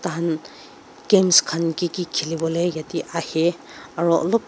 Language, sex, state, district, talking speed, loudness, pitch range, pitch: Nagamese, female, Nagaland, Dimapur, 135 wpm, -21 LUFS, 165-175 Hz, 170 Hz